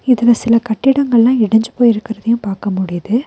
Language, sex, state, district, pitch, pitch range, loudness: Tamil, female, Tamil Nadu, Nilgiris, 230 Hz, 220-240 Hz, -14 LUFS